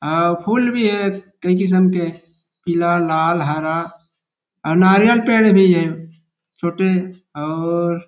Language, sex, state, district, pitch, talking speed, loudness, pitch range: Chhattisgarhi, male, Chhattisgarh, Rajnandgaon, 170 Hz, 125 wpm, -17 LUFS, 165-190 Hz